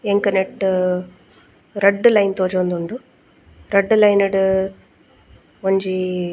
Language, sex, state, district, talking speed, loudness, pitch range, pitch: Tulu, female, Karnataka, Dakshina Kannada, 85 wpm, -18 LUFS, 185-200 Hz, 190 Hz